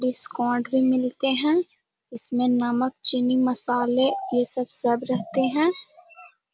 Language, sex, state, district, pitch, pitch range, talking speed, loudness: Hindi, female, Bihar, Jahanabad, 255 Hz, 245-270 Hz, 120 wpm, -17 LUFS